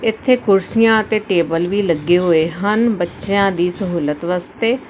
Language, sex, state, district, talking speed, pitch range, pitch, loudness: Punjabi, female, Karnataka, Bangalore, 145 wpm, 175-220 Hz, 195 Hz, -16 LUFS